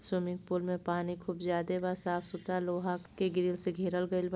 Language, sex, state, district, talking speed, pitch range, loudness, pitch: Bhojpuri, female, Uttar Pradesh, Deoria, 205 wpm, 180-185 Hz, -35 LUFS, 180 Hz